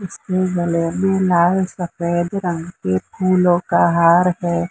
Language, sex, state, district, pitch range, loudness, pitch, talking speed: Hindi, female, Maharashtra, Mumbai Suburban, 170-185 Hz, -17 LUFS, 175 Hz, 140 wpm